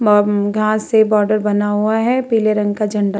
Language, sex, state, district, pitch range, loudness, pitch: Hindi, female, Uttar Pradesh, Muzaffarnagar, 205-215 Hz, -16 LUFS, 210 Hz